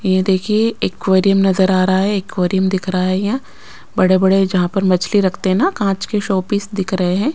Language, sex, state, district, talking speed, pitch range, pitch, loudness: Hindi, female, Maharashtra, Gondia, 210 wpm, 185-200 Hz, 190 Hz, -16 LUFS